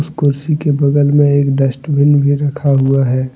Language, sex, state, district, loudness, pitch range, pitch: Hindi, male, Jharkhand, Deoghar, -13 LUFS, 135-145 Hz, 140 Hz